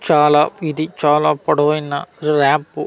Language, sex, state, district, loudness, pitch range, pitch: Telugu, male, Andhra Pradesh, Manyam, -16 LUFS, 150-155 Hz, 150 Hz